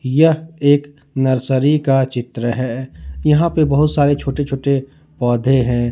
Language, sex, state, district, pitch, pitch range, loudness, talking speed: Hindi, male, Jharkhand, Ranchi, 135 Hz, 130-145 Hz, -16 LUFS, 140 wpm